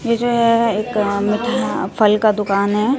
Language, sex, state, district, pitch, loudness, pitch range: Hindi, female, Bihar, Katihar, 215 Hz, -17 LUFS, 210-230 Hz